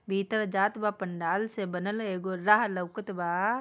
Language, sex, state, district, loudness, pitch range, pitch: Bhojpuri, female, Bihar, Gopalganj, -29 LUFS, 185-215 Hz, 195 Hz